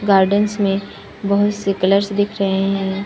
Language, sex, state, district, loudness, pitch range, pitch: Hindi, female, Chhattisgarh, Balrampur, -18 LUFS, 195-205 Hz, 200 Hz